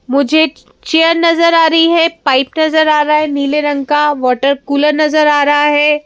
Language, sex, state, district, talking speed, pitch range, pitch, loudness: Hindi, female, Madhya Pradesh, Bhopal, 210 wpm, 285-320 Hz, 300 Hz, -11 LUFS